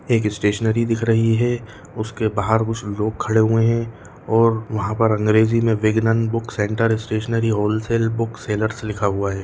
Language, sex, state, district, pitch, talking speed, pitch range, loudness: Hindi, male, Bihar, Darbhanga, 110 Hz, 170 wpm, 110-115 Hz, -20 LUFS